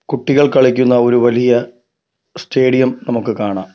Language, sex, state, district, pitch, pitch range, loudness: Malayalam, male, Kerala, Kollam, 120 Hz, 120-130 Hz, -13 LUFS